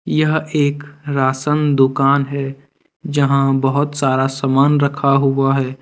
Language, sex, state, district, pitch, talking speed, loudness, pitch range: Hindi, male, Jharkhand, Deoghar, 140 Hz, 125 wpm, -16 LUFS, 135-145 Hz